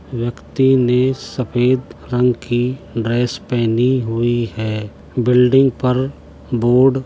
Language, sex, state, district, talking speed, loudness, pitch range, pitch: Hindi, male, Uttar Pradesh, Jalaun, 110 wpm, -17 LUFS, 120-130 Hz, 125 Hz